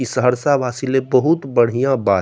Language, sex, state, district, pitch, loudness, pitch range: Maithili, male, Bihar, Saharsa, 130 Hz, -17 LUFS, 120-135 Hz